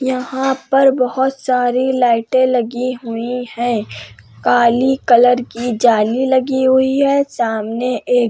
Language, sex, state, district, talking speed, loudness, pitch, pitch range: Hindi, female, Uttar Pradesh, Hamirpur, 130 wpm, -15 LUFS, 250 Hz, 235-260 Hz